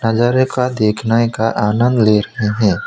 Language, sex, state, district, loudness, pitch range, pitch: Hindi, male, West Bengal, Alipurduar, -15 LUFS, 105-120 Hz, 115 Hz